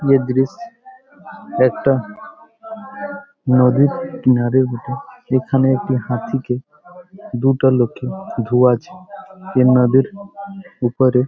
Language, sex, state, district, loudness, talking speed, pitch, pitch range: Bengali, male, West Bengal, Jhargram, -17 LUFS, 85 wpm, 135 Hz, 125-200 Hz